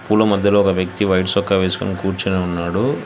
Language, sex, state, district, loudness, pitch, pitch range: Telugu, male, Telangana, Hyderabad, -18 LUFS, 95 Hz, 95-100 Hz